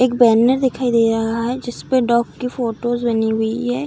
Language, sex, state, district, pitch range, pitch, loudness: Hindi, female, Uttar Pradesh, Deoria, 230-250 Hz, 240 Hz, -18 LUFS